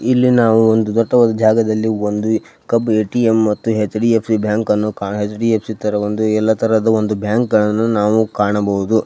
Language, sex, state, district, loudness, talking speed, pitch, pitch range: Kannada, male, Karnataka, Belgaum, -15 LUFS, 115 wpm, 110 Hz, 105-115 Hz